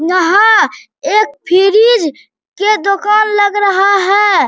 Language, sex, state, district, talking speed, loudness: Hindi, male, Bihar, Bhagalpur, 105 wpm, -11 LUFS